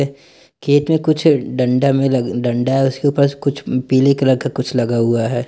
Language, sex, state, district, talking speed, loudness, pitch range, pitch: Hindi, male, Bihar, Gopalganj, 175 wpm, -16 LUFS, 125-140 Hz, 135 Hz